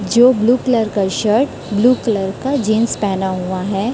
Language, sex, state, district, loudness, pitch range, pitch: Hindi, female, Chhattisgarh, Raipur, -16 LUFS, 195-240 Hz, 215 Hz